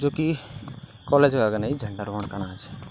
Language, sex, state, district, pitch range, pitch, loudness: Garhwali, male, Uttarakhand, Tehri Garhwal, 105-145 Hz, 130 Hz, -25 LUFS